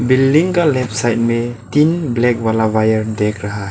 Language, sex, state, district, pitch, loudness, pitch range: Hindi, male, Arunachal Pradesh, Lower Dibang Valley, 120 Hz, -15 LUFS, 110-130 Hz